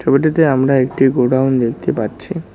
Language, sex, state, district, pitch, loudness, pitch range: Bengali, male, West Bengal, Cooch Behar, 135 Hz, -15 LUFS, 130-140 Hz